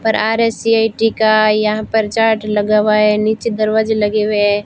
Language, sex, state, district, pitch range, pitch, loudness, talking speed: Hindi, female, Rajasthan, Barmer, 210-225 Hz, 215 Hz, -14 LUFS, 180 wpm